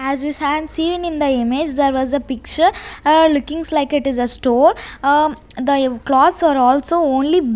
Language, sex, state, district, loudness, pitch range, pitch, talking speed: English, female, Chandigarh, Chandigarh, -16 LUFS, 265-315 Hz, 285 Hz, 165 wpm